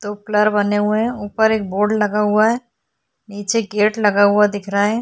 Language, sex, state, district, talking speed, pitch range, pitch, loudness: Hindi, female, Uttarakhand, Tehri Garhwal, 215 wpm, 205-220 Hz, 210 Hz, -17 LUFS